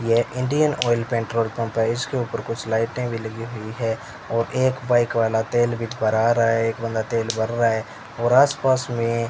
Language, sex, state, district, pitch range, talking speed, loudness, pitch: Hindi, male, Rajasthan, Bikaner, 115-120 Hz, 205 wpm, -22 LUFS, 115 Hz